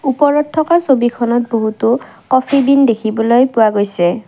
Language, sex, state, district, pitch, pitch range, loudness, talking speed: Assamese, female, Assam, Kamrup Metropolitan, 240 Hz, 225-275 Hz, -13 LUFS, 125 wpm